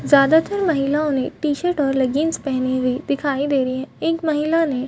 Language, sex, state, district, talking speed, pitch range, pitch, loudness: Hindi, female, Chhattisgarh, Bastar, 185 wpm, 265-320 Hz, 285 Hz, -20 LUFS